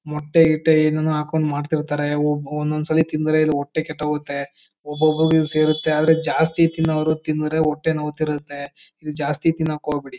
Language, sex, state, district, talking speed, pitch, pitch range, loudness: Kannada, male, Karnataka, Chamarajanagar, 125 wpm, 155 Hz, 150-155 Hz, -20 LUFS